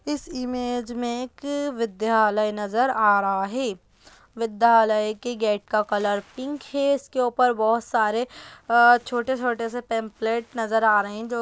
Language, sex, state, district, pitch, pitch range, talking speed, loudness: Hindi, female, Bihar, Gaya, 230 Hz, 215-250 Hz, 160 wpm, -23 LUFS